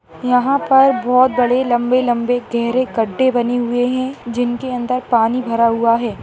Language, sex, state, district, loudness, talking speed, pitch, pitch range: Hindi, female, Rajasthan, Nagaur, -16 LUFS, 165 wpm, 245 Hz, 235-255 Hz